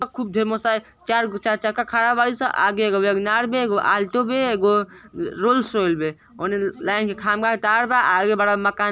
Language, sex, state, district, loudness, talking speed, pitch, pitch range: Bhojpuri, female, Uttar Pradesh, Ghazipur, -20 LUFS, 220 wpm, 220 Hz, 205-240 Hz